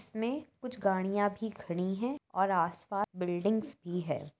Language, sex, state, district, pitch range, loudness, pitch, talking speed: Hindi, female, Uttar Pradesh, Etah, 180-220 Hz, -34 LUFS, 200 Hz, 150 wpm